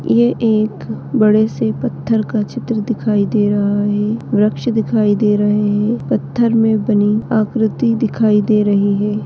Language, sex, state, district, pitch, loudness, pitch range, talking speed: Hindi, female, Chhattisgarh, Bastar, 215 Hz, -15 LUFS, 205-225 Hz, 155 wpm